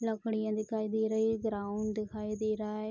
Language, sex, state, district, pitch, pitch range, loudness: Hindi, female, Bihar, Araria, 215 Hz, 215-220 Hz, -34 LUFS